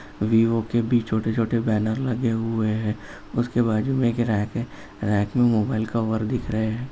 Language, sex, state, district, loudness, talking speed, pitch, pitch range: Hindi, male, Uttar Pradesh, Jalaun, -23 LUFS, 175 wpm, 115 Hz, 110-120 Hz